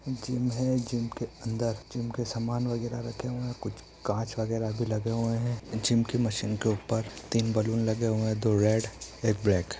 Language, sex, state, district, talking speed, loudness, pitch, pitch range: Hindi, male, Bihar, East Champaran, 210 wpm, -30 LUFS, 115 Hz, 110-120 Hz